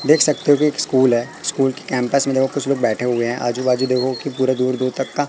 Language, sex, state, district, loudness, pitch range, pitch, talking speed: Hindi, male, Madhya Pradesh, Katni, -18 LUFS, 125-140 Hz, 130 Hz, 285 wpm